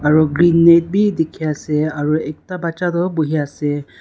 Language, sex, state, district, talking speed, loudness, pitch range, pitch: Nagamese, female, Nagaland, Kohima, 180 wpm, -17 LUFS, 150-170 Hz, 155 Hz